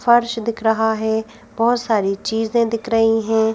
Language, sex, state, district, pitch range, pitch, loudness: Hindi, female, Madhya Pradesh, Bhopal, 220-230 Hz, 225 Hz, -19 LUFS